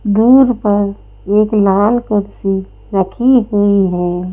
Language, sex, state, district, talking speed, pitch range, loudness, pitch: Hindi, female, Madhya Pradesh, Bhopal, 110 wpm, 195-215 Hz, -13 LUFS, 205 Hz